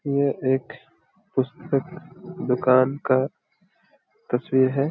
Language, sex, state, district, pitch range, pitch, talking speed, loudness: Hindi, male, Jharkhand, Jamtara, 130-140 Hz, 130 Hz, 85 wpm, -23 LUFS